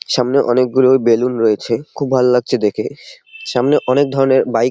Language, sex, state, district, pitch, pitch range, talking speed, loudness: Bengali, male, West Bengal, Jalpaiguri, 125 Hz, 115-135 Hz, 180 wpm, -15 LUFS